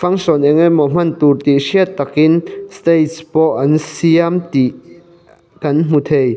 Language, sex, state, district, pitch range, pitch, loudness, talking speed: Mizo, male, Mizoram, Aizawl, 145-170 Hz, 160 Hz, -13 LUFS, 150 wpm